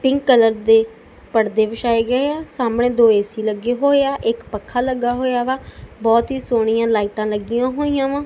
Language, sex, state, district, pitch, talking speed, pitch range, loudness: Punjabi, female, Punjab, Kapurthala, 235 Hz, 180 wpm, 225-260 Hz, -18 LUFS